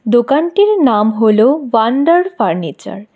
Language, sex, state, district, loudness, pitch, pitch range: Bengali, female, West Bengal, Alipurduar, -12 LUFS, 260 Hz, 220-325 Hz